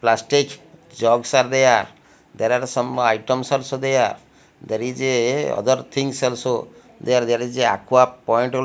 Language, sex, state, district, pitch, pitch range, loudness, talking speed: English, male, Odisha, Malkangiri, 125 Hz, 120-135 Hz, -20 LUFS, 150 wpm